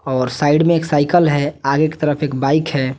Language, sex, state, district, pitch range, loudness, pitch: Hindi, male, Bihar, West Champaran, 140-155 Hz, -16 LUFS, 150 Hz